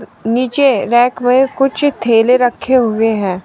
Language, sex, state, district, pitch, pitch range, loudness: Hindi, female, Uttar Pradesh, Shamli, 245 Hz, 225-260 Hz, -13 LUFS